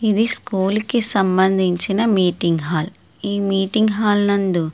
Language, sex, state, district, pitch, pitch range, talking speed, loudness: Telugu, female, Andhra Pradesh, Srikakulam, 195 Hz, 185-215 Hz, 140 wpm, -17 LUFS